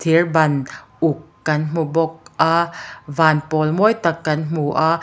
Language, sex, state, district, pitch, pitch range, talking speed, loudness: Mizo, female, Mizoram, Aizawl, 160 Hz, 155-165 Hz, 165 wpm, -19 LUFS